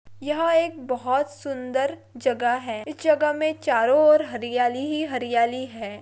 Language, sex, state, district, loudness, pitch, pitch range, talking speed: Hindi, female, Maharashtra, Dhule, -23 LUFS, 270 Hz, 245-305 Hz, 150 wpm